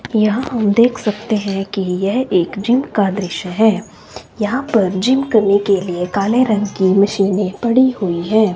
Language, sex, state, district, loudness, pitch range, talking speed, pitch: Hindi, male, Himachal Pradesh, Shimla, -16 LUFS, 195-230 Hz, 175 wpm, 205 Hz